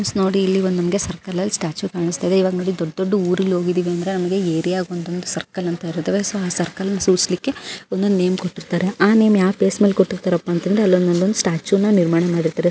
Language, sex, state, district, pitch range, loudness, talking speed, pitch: Kannada, female, Karnataka, Belgaum, 175-195 Hz, -19 LUFS, 215 wpm, 185 Hz